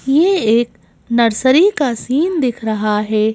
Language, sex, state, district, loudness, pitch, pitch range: Hindi, female, Madhya Pradesh, Bhopal, -15 LUFS, 240 Hz, 220-285 Hz